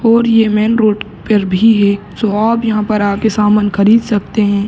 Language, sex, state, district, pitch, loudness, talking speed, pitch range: Hindi, male, Uttar Pradesh, Gorakhpur, 215 Hz, -12 LUFS, 205 wpm, 205-225 Hz